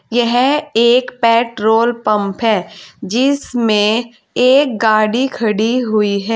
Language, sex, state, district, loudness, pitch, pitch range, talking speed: Hindi, female, Uttar Pradesh, Saharanpur, -14 LUFS, 230 Hz, 215-245 Hz, 105 wpm